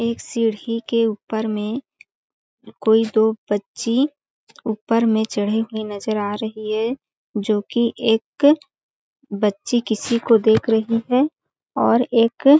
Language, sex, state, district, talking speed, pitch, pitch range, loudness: Hindi, female, Chhattisgarh, Balrampur, 130 wpm, 225 Hz, 220-235 Hz, -20 LUFS